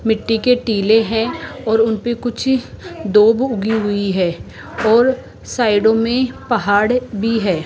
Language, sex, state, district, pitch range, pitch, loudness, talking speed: Hindi, female, Rajasthan, Jaipur, 215-240 Hz, 225 Hz, -16 LUFS, 135 wpm